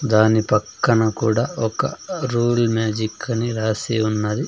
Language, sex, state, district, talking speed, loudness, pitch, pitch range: Telugu, male, Andhra Pradesh, Sri Satya Sai, 120 wpm, -20 LUFS, 110 Hz, 110-120 Hz